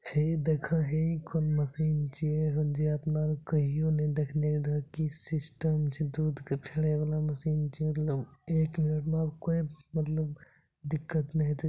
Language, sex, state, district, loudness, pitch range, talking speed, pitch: Maithili, male, Bihar, Supaul, -31 LUFS, 150-155 Hz, 170 wpm, 155 Hz